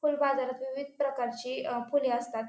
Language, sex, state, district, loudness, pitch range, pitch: Marathi, female, Maharashtra, Pune, -31 LUFS, 240-280 Hz, 265 Hz